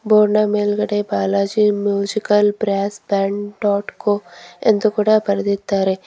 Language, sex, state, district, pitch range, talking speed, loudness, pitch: Kannada, female, Karnataka, Bidar, 200-210 Hz, 110 wpm, -18 LUFS, 205 Hz